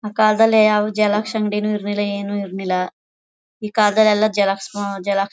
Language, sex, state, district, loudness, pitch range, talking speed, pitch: Kannada, female, Karnataka, Mysore, -18 LUFS, 195-215 Hz, 170 wpm, 205 Hz